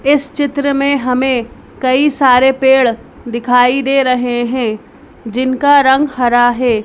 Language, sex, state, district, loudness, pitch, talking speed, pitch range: Hindi, male, Madhya Pradesh, Bhopal, -12 LUFS, 255 Hz, 130 wpm, 245-275 Hz